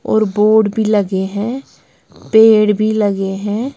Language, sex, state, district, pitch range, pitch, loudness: Hindi, female, Bihar, West Champaran, 205-220 Hz, 215 Hz, -14 LUFS